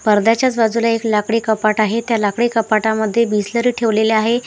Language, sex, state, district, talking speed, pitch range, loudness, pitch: Marathi, male, Maharashtra, Washim, 160 wpm, 215-230 Hz, -16 LUFS, 225 Hz